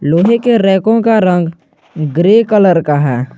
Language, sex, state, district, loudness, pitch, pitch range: Hindi, male, Jharkhand, Garhwa, -11 LUFS, 185 Hz, 155-220 Hz